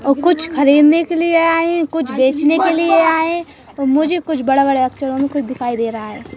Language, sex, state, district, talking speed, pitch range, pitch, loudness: Hindi, female, Madhya Pradesh, Bhopal, 225 wpm, 270-330 Hz, 300 Hz, -15 LUFS